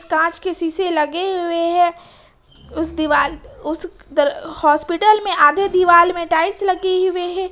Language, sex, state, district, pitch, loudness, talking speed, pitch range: Hindi, female, Jharkhand, Ranchi, 345 Hz, -17 LUFS, 150 wpm, 320-370 Hz